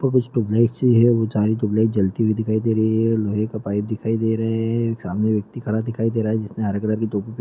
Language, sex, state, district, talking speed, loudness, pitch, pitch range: Hindi, male, Bihar, Jamui, 260 wpm, -21 LUFS, 110 Hz, 110-115 Hz